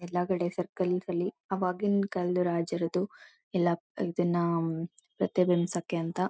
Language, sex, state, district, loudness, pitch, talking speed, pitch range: Kannada, female, Karnataka, Mysore, -30 LUFS, 180 Hz, 115 wpm, 175-185 Hz